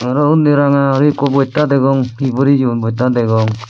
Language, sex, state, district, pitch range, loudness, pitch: Chakma, male, Tripura, Dhalai, 125-140 Hz, -13 LUFS, 135 Hz